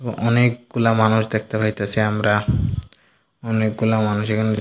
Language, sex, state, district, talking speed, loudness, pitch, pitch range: Bengali, male, Tripura, Dhalai, 115 wpm, -20 LUFS, 110 Hz, 110-115 Hz